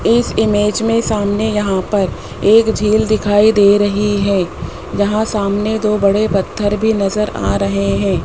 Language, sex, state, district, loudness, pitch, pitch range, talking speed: Hindi, male, Rajasthan, Jaipur, -14 LUFS, 205 Hz, 200-215 Hz, 160 wpm